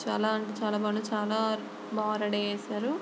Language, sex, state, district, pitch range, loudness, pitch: Telugu, female, Andhra Pradesh, Chittoor, 210-220 Hz, -31 LUFS, 215 Hz